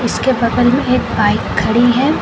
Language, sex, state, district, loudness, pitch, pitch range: Hindi, female, Uttar Pradesh, Lucknow, -14 LUFS, 250 Hz, 240-260 Hz